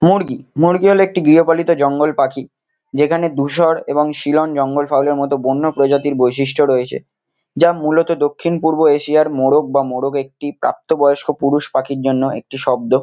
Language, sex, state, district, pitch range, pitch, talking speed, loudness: Bengali, male, West Bengal, Kolkata, 135-160 Hz, 145 Hz, 145 wpm, -15 LUFS